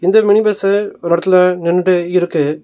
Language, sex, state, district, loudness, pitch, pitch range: Tamil, male, Tamil Nadu, Nilgiris, -13 LUFS, 180 Hz, 175-200 Hz